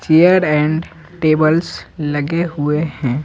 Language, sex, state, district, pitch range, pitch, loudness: Hindi, male, Bihar, Patna, 150-165 Hz, 155 Hz, -16 LUFS